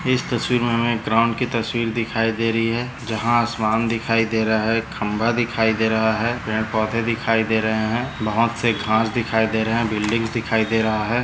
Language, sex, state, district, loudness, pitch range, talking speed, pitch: Hindi, male, Maharashtra, Nagpur, -20 LUFS, 110-115 Hz, 215 wpm, 115 Hz